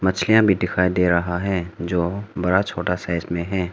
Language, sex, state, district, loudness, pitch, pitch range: Hindi, male, Arunachal Pradesh, Longding, -21 LUFS, 90 Hz, 85-95 Hz